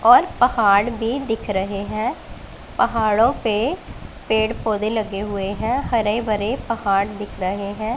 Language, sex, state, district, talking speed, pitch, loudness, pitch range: Hindi, female, Punjab, Pathankot, 145 wpm, 215 Hz, -20 LUFS, 200-225 Hz